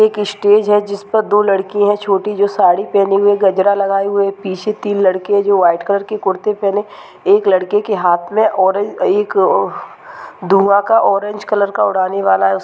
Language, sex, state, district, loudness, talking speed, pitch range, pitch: Hindi, female, Uttarakhand, Tehri Garhwal, -14 LUFS, 205 wpm, 195-210 Hz, 200 Hz